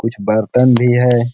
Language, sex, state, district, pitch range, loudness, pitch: Hindi, male, Bihar, Gaya, 115-125 Hz, -13 LUFS, 120 Hz